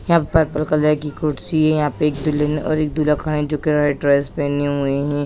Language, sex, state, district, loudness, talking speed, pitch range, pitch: Hindi, male, Bihar, East Champaran, -19 LUFS, 250 wpm, 145-155 Hz, 150 Hz